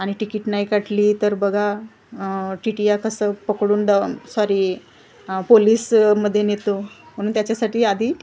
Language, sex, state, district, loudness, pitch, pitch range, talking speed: Marathi, female, Maharashtra, Gondia, -19 LUFS, 210 Hz, 205-215 Hz, 130 wpm